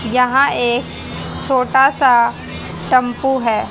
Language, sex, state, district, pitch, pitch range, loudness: Hindi, female, Haryana, Jhajjar, 255 Hz, 240-265 Hz, -15 LUFS